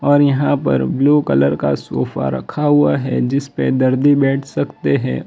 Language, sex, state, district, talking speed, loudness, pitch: Hindi, male, Gujarat, Valsad, 205 wpm, -16 LUFS, 135 Hz